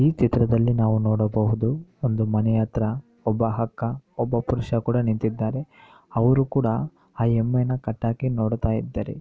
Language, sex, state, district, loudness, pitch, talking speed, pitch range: Kannada, male, Karnataka, Bellary, -24 LUFS, 115 Hz, 130 wpm, 110-125 Hz